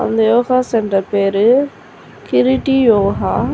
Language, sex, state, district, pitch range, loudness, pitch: Tamil, female, Tamil Nadu, Chennai, 205-255 Hz, -14 LUFS, 230 Hz